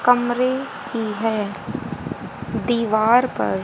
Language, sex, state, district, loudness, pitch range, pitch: Hindi, female, Haryana, Jhajjar, -21 LUFS, 215-245 Hz, 230 Hz